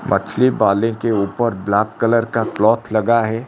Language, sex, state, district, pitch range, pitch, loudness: Hindi, male, Odisha, Khordha, 110-115 Hz, 115 Hz, -17 LUFS